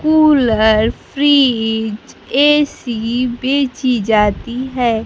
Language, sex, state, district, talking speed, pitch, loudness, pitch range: Hindi, female, Bihar, Kaimur, 70 wpm, 250 Hz, -14 LUFS, 225-280 Hz